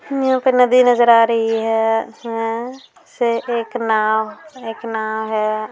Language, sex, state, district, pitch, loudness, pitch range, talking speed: Hindi, female, Bihar, Saran, 230 Hz, -17 LUFS, 220-245 Hz, 145 wpm